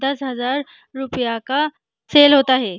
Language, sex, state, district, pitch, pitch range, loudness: Hindi, female, Chhattisgarh, Balrampur, 270 Hz, 255-290 Hz, -17 LUFS